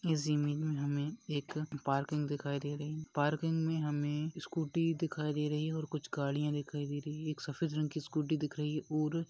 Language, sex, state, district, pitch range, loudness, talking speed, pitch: Hindi, male, Maharashtra, Nagpur, 145-155 Hz, -36 LUFS, 205 wpm, 150 Hz